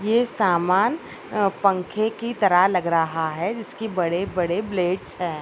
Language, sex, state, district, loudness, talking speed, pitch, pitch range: Hindi, female, Bihar, Saharsa, -22 LUFS, 135 wpm, 185 Hz, 175-215 Hz